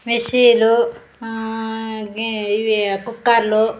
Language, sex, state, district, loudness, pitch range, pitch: Telugu, female, Andhra Pradesh, Sri Satya Sai, -17 LUFS, 220-235 Hz, 225 Hz